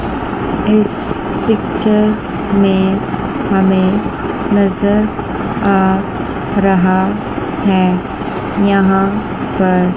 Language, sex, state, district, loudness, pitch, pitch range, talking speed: Hindi, female, Chandigarh, Chandigarh, -14 LUFS, 195 Hz, 190-205 Hz, 60 wpm